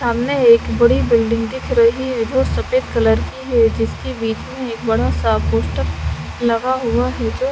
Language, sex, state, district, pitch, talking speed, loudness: Hindi, female, Haryana, Charkhi Dadri, 230 Hz, 190 wpm, -17 LUFS